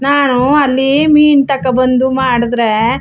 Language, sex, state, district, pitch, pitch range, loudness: Kannada, female, Karnataka, Chamarajanagar, 265 Hz, 250-280 Hz, -11 LUFS